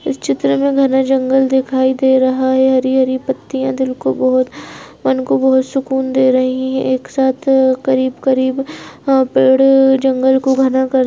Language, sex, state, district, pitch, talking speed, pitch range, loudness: Hindi, female, Bihar, Muzaffarpur, 265 Hz, 170 wpm, 260-265 Hz, -14 LUFS